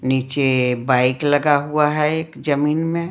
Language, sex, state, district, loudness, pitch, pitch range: Hindi, female, Bihar, Patna, -18 LUFS, 145 Hz, 130-150 Hz